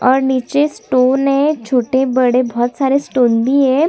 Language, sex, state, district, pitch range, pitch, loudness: Hindi, female, Chhattisgarh, Sukma, 255-275 Hz, 265 Hz, -14 LUFS